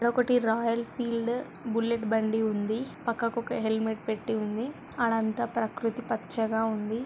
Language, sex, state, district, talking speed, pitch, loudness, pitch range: Telugu, female, Telangana, Karimnagar, 135 wpm, 230 Hz, -29 LUFS, 220-235 Hz